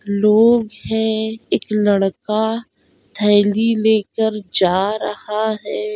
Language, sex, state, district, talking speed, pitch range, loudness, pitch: Hindi, female, Bihar, Saharsa, 90 wpm, 205-220 Hz, -17 LUFS, 215 Hz